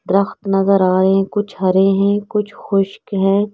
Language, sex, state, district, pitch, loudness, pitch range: Hindi, female, Delhi, New Delhi, 195 Hz, -16 LUFS, 195-200 Hz